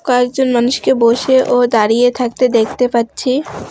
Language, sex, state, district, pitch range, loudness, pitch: Bengali, female, West Bengal, Alipurduar, 235-260 Hz, -13 LUFS, 245 Hz